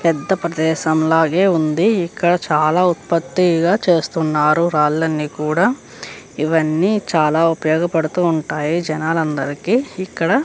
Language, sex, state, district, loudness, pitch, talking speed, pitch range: Telugu, female, Andhra Pradesh, Chittoor, -17 LUFS, 165 Hz, 90 wpm, 155-180 Hz